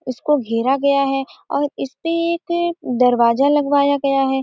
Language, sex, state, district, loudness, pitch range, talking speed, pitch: Hindi, female, Bihar, Gopalganj, -18 LUFS, 265-300 Hz, 150 wpm, 280 Hz